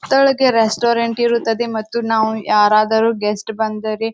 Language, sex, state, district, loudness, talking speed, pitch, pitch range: Kannada, female, Karnataka, Bijapur, -16 LUFS, 115 wpm, 225 Hz, 220-235 Hz